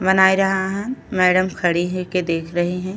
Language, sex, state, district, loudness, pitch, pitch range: Bhojpuri, female, Uttar Pradesh, Deoria, -19 LUFS, 185 Hz, 180-190 Hz